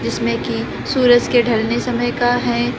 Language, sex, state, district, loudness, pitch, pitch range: Hindi, female, Uttar Pradesh, Lucknow, -17 LUFS, 240 Hz, 220-245 Hz